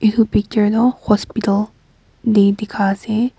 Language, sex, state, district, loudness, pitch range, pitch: Nagamese, female, Nagaland, Kohima, -17 LUFS, 205-225 Hz, 215 Hz